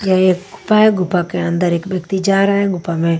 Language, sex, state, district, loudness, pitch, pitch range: Hindi, female, Maharashtra, Washim, -16 LUFS, 185 Hz, 175-195 Hz